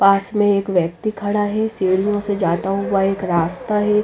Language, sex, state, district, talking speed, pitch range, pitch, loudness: Hindi, female, Bihar, Patna, 195 wpm, 190-210 Hz, 195 Hz, -19 LUFS